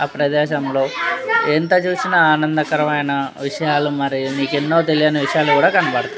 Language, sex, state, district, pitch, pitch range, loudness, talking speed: Telugu, male, Telangana, Nalgonda, 150 Hz, 140-155 Hz, -17 LUFS, 155 wpm